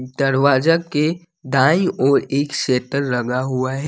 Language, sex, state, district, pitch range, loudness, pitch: Hindi, male, Jharkhand, Deoghar, 130-155 Hz, -18 LUFS, 140 Hz